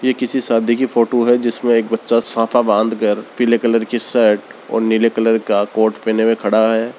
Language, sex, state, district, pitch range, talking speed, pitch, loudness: Hindi, male, Rajasthan, Churu, 110-120 Hz, 205 wpm, 115 Hz, -16 LUFS